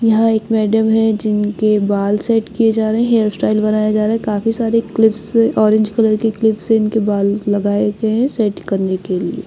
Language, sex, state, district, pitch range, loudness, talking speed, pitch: Hindi, female, Bihar, Patna, 210-225 Hz, -15 LUFS, 215 wpm, 215 Hz